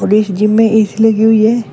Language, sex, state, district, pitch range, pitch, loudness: Hindi, female, Uttar Pradesh, Shamli, 210-225 Hz, 220 Hz, -11 LUFS